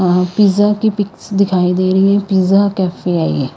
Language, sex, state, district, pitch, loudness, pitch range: Hindi, female, Haryana, Rohtak, 195 Hz, -14 LUFS, 180-200 Hz